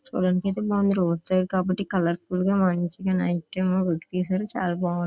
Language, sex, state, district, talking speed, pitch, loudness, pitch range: Telugu, female, Andhra Pradesh, Visakhapatnam, 155 wpm, 185 Hz, -25 LUFS, 175-190 Hz